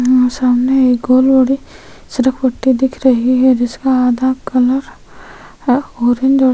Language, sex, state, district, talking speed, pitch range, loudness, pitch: Hindi, female, Chhattisgarh, Sukma, 145 wpm, 250-260 Hz, -13 LUFS, 255 Hz